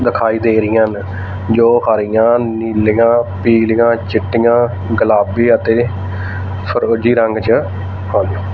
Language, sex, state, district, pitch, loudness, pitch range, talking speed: Punjabi, male, Punjab, Fazilka, 110 Hz, -14 LUFS, 95-115 Hz, 105 wpm